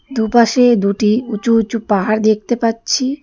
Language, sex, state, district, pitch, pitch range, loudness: Bengali, female, West Bengal, Darjeeling, 225 Hz, 215-240 Hz, -15 LUFS